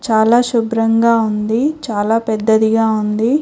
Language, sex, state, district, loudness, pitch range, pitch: Telugu, female, Telangana, Hyderabad, -15 LUFS, 220-230 Hz, 225 Hz